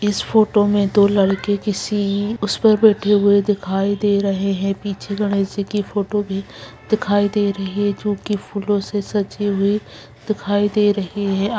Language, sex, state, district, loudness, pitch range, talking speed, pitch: Hindi, female, Chhattisgarh, Kabirdham, -19 LUFS, 200-210 Hz, 180 wpm, 205 Hz